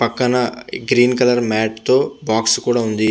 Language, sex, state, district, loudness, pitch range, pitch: Telugu, male, Andhra Pradesh, Visakhapatnam, -16 LUFS, 110-125 Hz, 120 Hz